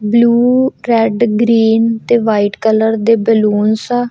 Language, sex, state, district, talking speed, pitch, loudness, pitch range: Punjabi, female, Punjab, Kapurthala, 130 wpm, 225 Hz, -12 LUFS, 215-235 Hz